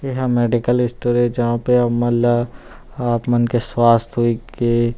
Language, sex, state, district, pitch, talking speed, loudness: Chhattisgarhi, male, Chhattisgarh, Rajnandgaon, 120 Hz, 180 wpm, -18 LUFS